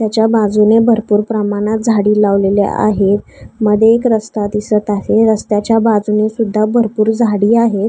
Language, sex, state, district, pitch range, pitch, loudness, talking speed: Marathi, female, Maharashtra, Gondia, 210-225 Hz, 215 Hz, -13 LUFS, 135 wpm